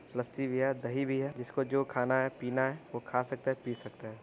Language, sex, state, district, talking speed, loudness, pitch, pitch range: Hindi, male, Uttar Pradesh, Varanasi, 270 wpm, -34 LUFS, 130 Hz, 125-135 Hz